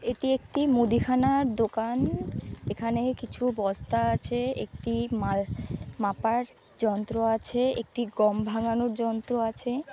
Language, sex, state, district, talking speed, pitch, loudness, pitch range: Bengali, female, West Bengal, North 24 Parganas, 110 wpm, 235 Hz, -28 LUFS, 225-250 Hz